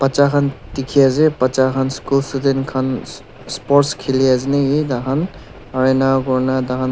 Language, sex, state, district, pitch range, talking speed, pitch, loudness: Nagamese, male, Nagaland, Dimapur, 130-140 Hz, 155 wpm, 135 Hz, -17 LUFS